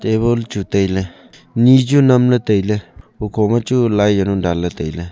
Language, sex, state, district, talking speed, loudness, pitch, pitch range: Wancho, male, Arunachal Pradesh, Longding, 165 wpm, -15 LUFS, 105 Hz, 95-120 Hz